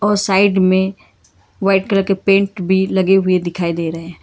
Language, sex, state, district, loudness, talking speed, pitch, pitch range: Hindi, female, Karnataka, Bangalore, -15 LUFS, 185 wpm, 190 Hz, 185-195 Hz